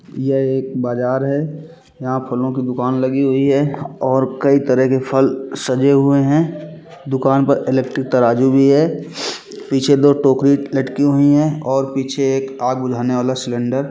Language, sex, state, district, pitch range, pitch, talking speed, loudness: Hindi, male, Chhattisgarh, Bilaspur, 130-140 Hz, 135 Hz, 170 wpm, -16 LUFS